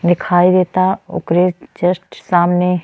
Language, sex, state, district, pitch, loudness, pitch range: Bhojpuri, female, Uttar Pradesh, Deoria, 180 Hz, -15 LUFS, 175-185 Hz